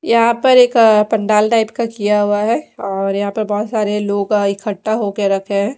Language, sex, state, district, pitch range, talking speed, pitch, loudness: Hindi, female, Odisha, Malkangiri, 205-225 Hz, 230 wpm, 210 Hz, -15 LUFS